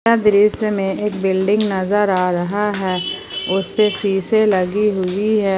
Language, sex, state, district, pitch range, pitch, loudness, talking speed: Hindi, female, Jharkhand, Palamu, 190-210 Hz, 200 Hz, -17 LUFS, 160 wpm